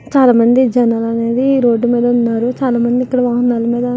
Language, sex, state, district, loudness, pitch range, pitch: Telugu, female, Andhra Pradesh, Visakhapatnam, -13 LUFS, 235-250 Hz, 240 Hz